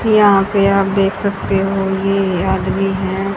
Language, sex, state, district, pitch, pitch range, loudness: Hindi, female, Haryana, Charkhi Dadri, 195 Hz, 195-200 Hz, -15 LUFS